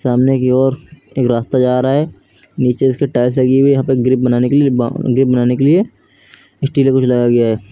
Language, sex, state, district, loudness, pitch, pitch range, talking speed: Hindi, male, Uttar Pradesh, Lucknow, -14 LUFS, 130 Hz, 125-135 Hz, 235 wpm